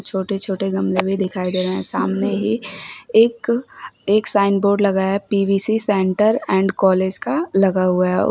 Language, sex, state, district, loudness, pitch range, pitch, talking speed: Hindi, female, Uttar Pradesh, Shamli, -18 LUFS, 185-205 Hz, 195 Hz, 160 wpm